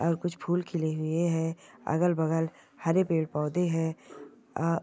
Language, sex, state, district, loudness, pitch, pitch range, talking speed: Hindi, female, Rajasthan, Nagaur, -29 LUFS, 165 Hz, 160-175 Hz, 150 wpm